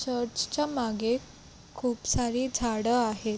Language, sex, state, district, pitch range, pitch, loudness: Marathi, female, Maharashtra, Sindhudurg, 225-250 Hz, 240 Hz, -29 LUFS